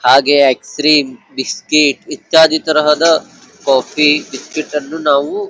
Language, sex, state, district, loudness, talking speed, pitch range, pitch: Kannada, male, Karnataka, Belgaum, -13 LUFS, 110 wpm, 140-160 Hz, 150 Hz